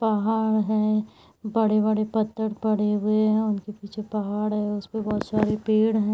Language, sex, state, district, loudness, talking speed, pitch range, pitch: Hindi, female, Chhattisgarh, Raigarh, -24 LUFS, 165 wpm, 210-220 Hz, 215 Hz